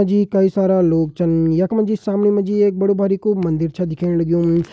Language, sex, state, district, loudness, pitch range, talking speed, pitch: Hindi, male, Uttarakhand, Tehri Garhwal, -17 LUFS, 170-200 Hz, 240 wpm, 190 Hz